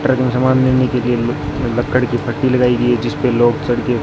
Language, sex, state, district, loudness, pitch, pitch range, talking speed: Hindi, male, Rajasthan, Bikaner, -16 LUFS, 125 Hz, 120-130 Hz, 255 wpm